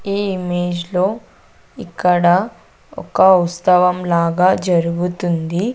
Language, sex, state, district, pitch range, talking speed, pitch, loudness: Telugu, female, Andhra Pradesh, Sri Satya Sai, 175-190 Hz, 85 wpm, 180 Hz, -16 LUFS